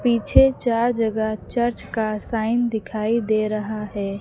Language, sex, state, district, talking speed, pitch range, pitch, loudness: Hindi, female, Uttar Pradesh, Lucknow, 140 wpm, 215-235 Hz, 220 Hz, -22 LUFS